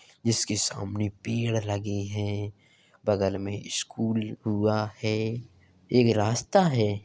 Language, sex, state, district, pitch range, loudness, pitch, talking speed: Hindi, male, Uttar Pradesh, Jalaun, 100-115 Hz, -27 LUFS, 110 Hz, 135 wpm